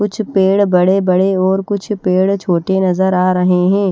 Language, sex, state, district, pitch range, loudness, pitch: Hindi, female, Haryana, Charkhi Dadri, 185-200 Hz, -14 LUFS, 190 Hz